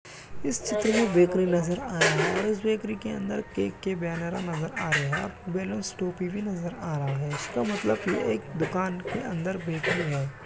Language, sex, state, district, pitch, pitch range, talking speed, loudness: Hindi, male, Uttar Pradesh, Jalaun, 180 Hz, 165-200 Hz, 230 wpm, -28 LUFS